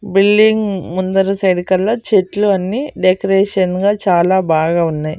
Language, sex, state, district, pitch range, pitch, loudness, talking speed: Telugu, female, Andhra Pradesh, Annamaya, 185-205 Hz, 195 Hz, -14 LUFS, 125 wpm